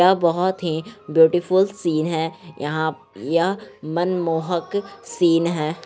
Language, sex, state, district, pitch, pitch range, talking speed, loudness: Hindi, female, Bihar, Gaya, 170 Hz, 160-185 Hz, 125 wpm, -21 LUFS